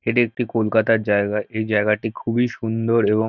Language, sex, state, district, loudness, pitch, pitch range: Bengali, male, West Bengal, North 24 Parganas, -20 LUFS, 110 Hz, 105-115 Hz